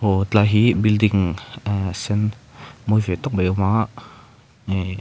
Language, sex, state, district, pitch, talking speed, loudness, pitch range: Mizo, male, Mizoram, Aizawl, 105 Hz, 155 wpm, -20 LUFS, 95-115 Hz